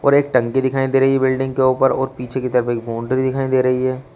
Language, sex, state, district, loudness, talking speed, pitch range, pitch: Hindi, male, Uttar Pradesh, Shamli, -18 LUFS, 290 wpm, 125-135 Hz, 130 Hz